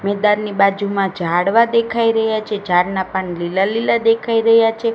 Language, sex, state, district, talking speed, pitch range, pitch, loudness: Gujarati, female, Gujarat, Gandhinagar, 155 wpm, 190-225 Hz, 210 Hz, -16 LUFS